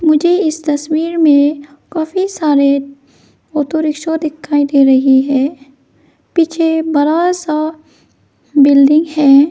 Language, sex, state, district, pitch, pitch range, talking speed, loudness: Hindi, female, Arunachal Pradesh, Lower Dibang Valley, 305 Hz, 280-320 Hz, 105 wpm, -13 LUFS